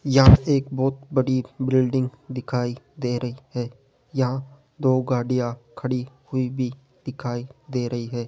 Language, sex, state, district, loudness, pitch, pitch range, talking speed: Hindi, male, Rajasthan, Jaipur, -24 LUFS, 130 Hz, 125-135 Hz, 135 wpm